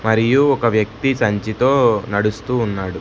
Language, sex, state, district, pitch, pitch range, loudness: Telugu, male, Andhra Pradesh, Sri Satya Sai, 110 Hz, 105-125 Hz, -17 LUFS